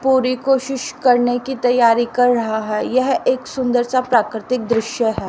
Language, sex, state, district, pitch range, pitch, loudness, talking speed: Hindi, female, Haryana, Rohtak, 235-255 Hz, 245 Hz, -17 LUFS, 170 wpm